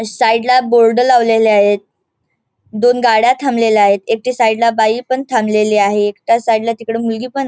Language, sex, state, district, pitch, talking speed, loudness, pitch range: Marathi, female, Goa, North and South Goa, 225 Hz, 170 wpm, -13 LUFS, 215-245 Hz